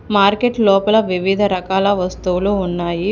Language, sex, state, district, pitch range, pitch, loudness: Telugu, female, Telangana, Hyderabad, 185-205 Hz, 195 Hz, -16 LUFS